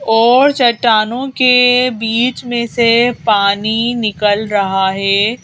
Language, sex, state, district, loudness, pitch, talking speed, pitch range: Hindi, female, Madhya Pradesh, Bhopal, -12 LUFS, 230 Hz, 110 wpm, 210-245 Hz